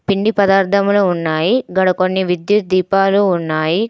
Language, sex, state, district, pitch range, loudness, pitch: Telugu, female, Telangana, Hyderabad, 180-200 Hz, -15 LUFS, 190 Hz